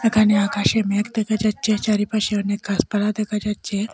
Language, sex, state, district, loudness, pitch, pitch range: Bengali, female, Assam, Hailakandi, -21 LUFS, 210 Hz, 205-215 Hz